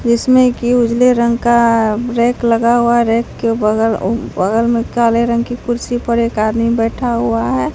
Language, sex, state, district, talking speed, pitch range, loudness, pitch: Hindi, female, Bihar, Katihar, 195 wpm, 230-240 Hz, -14 LUFS, 235 Hz